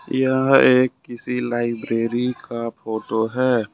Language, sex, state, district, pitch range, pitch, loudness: Hindi, male, Jharkhand, Ranchi, 115-130 Hz, 120 Hz, -20 LUFS